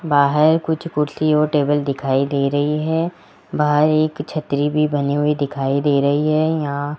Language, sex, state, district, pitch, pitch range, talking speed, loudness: Hindi, male, Rajasthan, Jaipur, 150 Hz, 140-155 Hz, 180 wpm, -18 LUFS